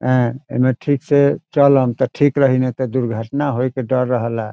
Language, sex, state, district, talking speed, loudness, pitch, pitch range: Bhojpuri, male, Bihar, Saran, 210 wpm, -17 LUFS, 130 Hz, 125-140 Hz